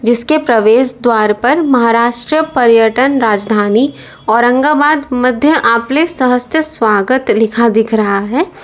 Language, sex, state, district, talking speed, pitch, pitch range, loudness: Hindi, female, Uttar Pradesh, Lalitpur, 110 wpm, 240 Hz, 225-285 Hz, -11 LUFS